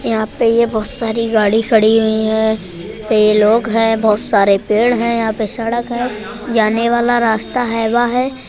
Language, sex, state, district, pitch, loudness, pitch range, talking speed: Hindi, female, Uttar Pradesh, Budaun, 225 Hz, -14 LUFS, 220-235 Hz, 175 wpm